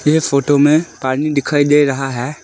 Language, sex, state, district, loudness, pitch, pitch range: Hindi, male, Arunachal Pradesh, Lower Dibang Valley, -14 LUFS, 145 Hz, 135-150 Hz